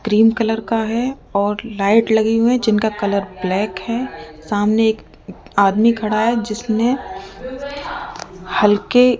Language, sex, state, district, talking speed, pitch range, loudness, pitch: Hindi, female, Rajasthan, Jaipur, 135 wpm, 205-230 Hz, -17 LUFS, 220 Hz